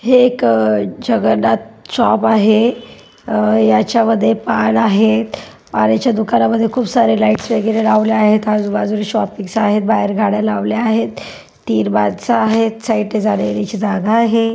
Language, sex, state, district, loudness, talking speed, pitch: Marathi, female, Maharashtra, Pune, -14 LUFS, 130 wpm, 215 Hz